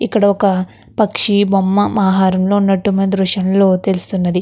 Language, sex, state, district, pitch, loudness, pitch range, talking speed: Telugu, female, Andhra Pradesh, Krishna, 195 Hz, -14 LUFS, 190-200 Hz, 110 wpm